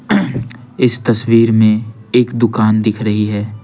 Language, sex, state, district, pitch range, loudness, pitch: Hindi, male, Bihar, Patna, 110-120 Hz, -14 LUFS, 110 Hz